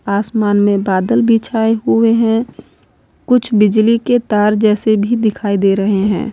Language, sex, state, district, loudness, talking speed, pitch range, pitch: Hindi, female, Uttar Pradesh, Lalitpur, -13 LUFS, 160 wpm, 205-230 Hz, 215 Hz